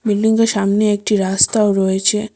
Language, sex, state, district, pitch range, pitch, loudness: Bengali, female, Assam, Hailakandi, 200-215 Hz, 210 Hz, -15 LUFS